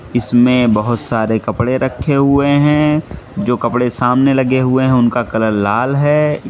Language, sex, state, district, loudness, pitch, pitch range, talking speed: Hindi, male, Mizoram, Aizawl, -14 LUFS, 125 Hz, 120-140 Hz, 155 wpm